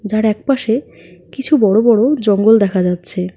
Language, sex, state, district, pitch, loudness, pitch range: Bengali, female, West Bengal, Alipurduar, 215 Hz, -14 LUFS, 185-230 Hz